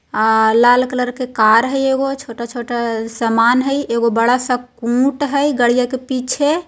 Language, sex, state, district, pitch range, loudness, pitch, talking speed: Hindi, female, Bihar, Jahanabad, 235-265 Hz, -16 LUFS, 245 Hz, 190 wpm